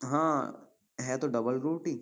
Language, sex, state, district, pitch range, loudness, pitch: Hindi, male, Uttar Pradesh, Jyotiba Phule Nagar, 125-155 Hz, -32 LUFS, 135 Hz